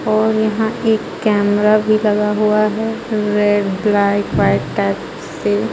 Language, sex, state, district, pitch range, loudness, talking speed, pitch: Hindi, female, Jharkhand, Ranchi, 205-215 Hz, -16 LUFS, 135 wpm, 210 Hz